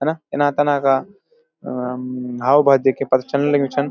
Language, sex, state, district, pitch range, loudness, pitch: Garhwali, male, Uttarakhand, Uttarkashi, 130-145 Hz, -18 LUFS, 140 Hz